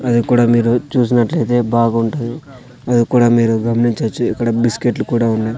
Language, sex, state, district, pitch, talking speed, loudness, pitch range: Telugu, male, Andhra Pradesh, Sri Satya Sai, 120 Hz, 140 wpm, -15 LUFS, 115-120 Hz